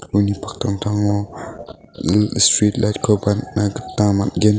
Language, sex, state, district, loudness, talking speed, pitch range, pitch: Garo, male, Meghalaya, West Garo Hills, -18 LUFS, 50 wpm, 100-105 Hz, 105 Hz